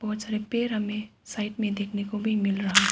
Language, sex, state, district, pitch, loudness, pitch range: Hindi, female, Arunachal Pradesh, Papum Pare, 210 Hz, -28 LUFS, 205-215 Hz